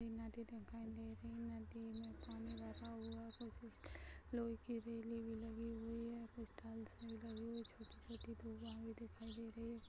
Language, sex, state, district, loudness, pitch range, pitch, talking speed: Hindi, female, Maharashtra, Solapur, -51 LUFS, 220-230 Hz, 225 Hz, 145 wpm